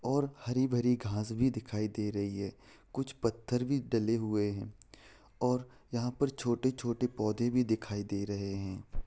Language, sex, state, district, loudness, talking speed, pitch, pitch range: Hindi, male, Bihar, Saran, -34 LUFS, 150 wpm, 115 Hz, 105-125 Hz